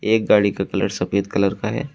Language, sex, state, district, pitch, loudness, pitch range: Hindi, male, Uttar Pradesh, Shamli, 100 Hz, -20 LUFS, 95-110 Hz